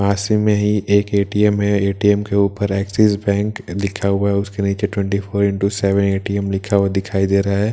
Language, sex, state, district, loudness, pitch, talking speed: Hindi, male, Bihar, Katihar, -18 LUFS, 100 Hz, 215 wpm